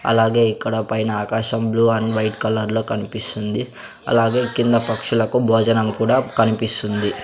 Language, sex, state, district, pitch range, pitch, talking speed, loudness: Telugu, male, Andhra Pradesh, Sri Satya Sai, 110-115 Hz, 115 Hz, 130 wpm, -19 LUFS